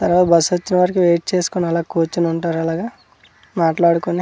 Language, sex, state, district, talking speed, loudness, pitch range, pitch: Telugu, male, Andhra Pradesh, Manyam, 130 wpm, -17 LUFS, 170-180 Hz, 170 Hz